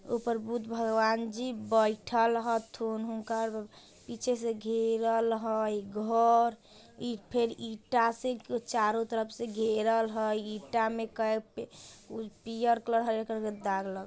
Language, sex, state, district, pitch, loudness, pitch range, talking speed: Bajjika, female, Bihar, Vaishali, 225 Hz, -31 LUFS, 220-230 Hz, 125 wpm